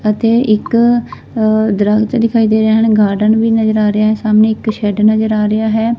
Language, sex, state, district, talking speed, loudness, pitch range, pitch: Punjabi, female, Punjab, Fazilka, 210 wpm, -12 LUFS, 215-225 Hz, 220 Hz